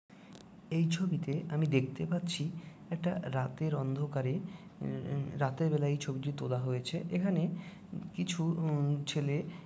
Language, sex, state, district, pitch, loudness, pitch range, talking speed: Bengali, male, West Bengal, Dakshin Dinajpur, 160 Hz, -35 LUFS, 145-180 Hz, 125 wpm